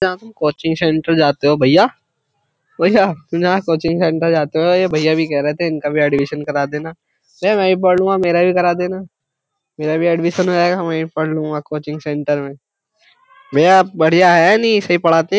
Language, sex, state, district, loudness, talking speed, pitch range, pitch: Hindi, male, Uttar Pradesh, Jyotiba Phule Nagar, -15 LUFS, 205 wpm, 150-180 Hz, 165 Hz